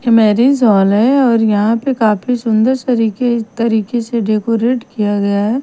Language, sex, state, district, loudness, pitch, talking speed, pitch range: Hindi, female, Bihar, Patna, -13 LUFS, 230 Hz, 180 wpm, 215-245 Hz